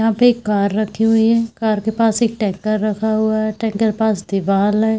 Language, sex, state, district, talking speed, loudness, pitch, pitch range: Hindi, female, Jharkhand, Sahebganj, 230 wpm, -17 LUFS, 220 Hz, 210-225 Hz